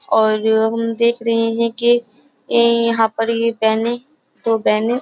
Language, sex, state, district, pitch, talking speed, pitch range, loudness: Hindi, female, Uttar Pradesh, Jyotiba Phule Nagar, 230 Hz, 155 wpm, 225-235 Hz, -17 LUFS